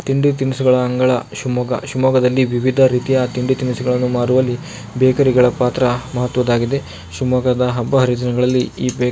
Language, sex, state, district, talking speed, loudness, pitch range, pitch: Kannada, male, Karnataka, Shimoga, 125 wpm, -16 LUFS, 125-130 Hz, 125 Hz